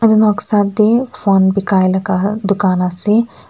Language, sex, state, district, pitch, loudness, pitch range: Nagamese, female, Nagaland, Kohima, 205 Hz, -14 LUFS, 190-215 Hz